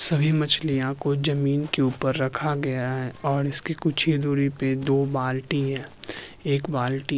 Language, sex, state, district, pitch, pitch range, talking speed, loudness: Hindi, male, Uttarakhand, Tehri Garhwal, 140 Hz, 130-150 Hz, 175 wpm, -24 LUFS